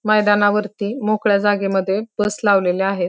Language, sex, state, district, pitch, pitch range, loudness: Marathi, female, Maharashtra, Pune, 205 Hz, 195-210 Hz, -18 LUFS